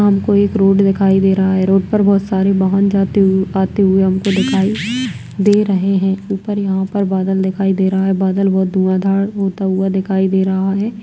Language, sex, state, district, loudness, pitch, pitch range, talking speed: Kumaoni, female, Uttarakhand, Tehri Garhwal, -15 LUFS, 195 Hz, 190-200 Hz, 210 wpm